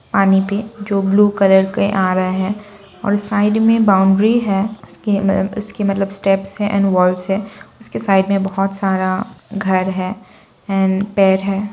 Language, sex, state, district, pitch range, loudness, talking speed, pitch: Hindi, female, Bihar, Saran, 190-205 Hz, -16 LUFS, 165 wpm, 195 Hz